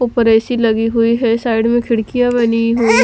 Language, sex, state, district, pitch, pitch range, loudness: Hindi, female, Punjab, Fazilka, 230 Hz, 230-240 Hz, -14 LUFS